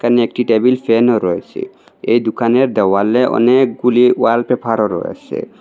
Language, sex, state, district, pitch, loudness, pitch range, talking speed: Bengali, male, Assam, Hailakandi, 120 Hz, -14 LUFS, 115-125 Hz, 130 wpm